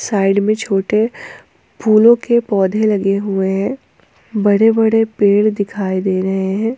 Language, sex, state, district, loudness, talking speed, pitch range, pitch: Hindi, female, Jharkhand, Ranchi, -15 LUFS, 140 wpm, 195-220 Hz, 205 Hz